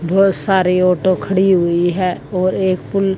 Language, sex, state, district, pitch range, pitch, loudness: Hindi, female, Haryana, Jhajjar, 180-190 Hz, 185 Hz, -15 LUFS